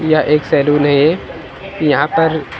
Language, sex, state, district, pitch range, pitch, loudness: Hindi, male, Maharashtra, Mumbai Suburban, 145-160 Hz, 150 Hz, -14 LUFS